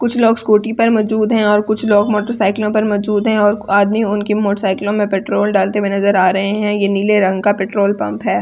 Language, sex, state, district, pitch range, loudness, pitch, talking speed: Hindi, female, Delhi, New Delhi, 200-215 Hz, -15 LUFS, 210 Hz, 240 wpm